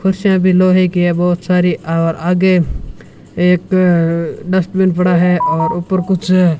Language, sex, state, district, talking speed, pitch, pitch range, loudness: Hindi, male, Rajasthan, Bikaner, 155 wpm, 180 Hz, 175-185 Hz, -13 LUFS